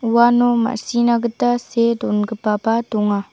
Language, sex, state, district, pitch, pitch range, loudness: Garo, female, Meghalaya, South Garo Hills, 235 Hz, 220-240 Hz, -18 LUFS